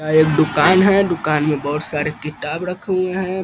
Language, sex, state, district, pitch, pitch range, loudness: Hindi, male, Bihar, East Champaran, 155 Hz, 150-185 Hz, -17 LUFS